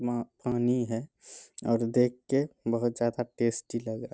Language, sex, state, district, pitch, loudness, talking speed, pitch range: Hindi, male, Bihar, Bhagalpur, 120 Hz, -30 LUFS, 175 wpm, 115-125 Hz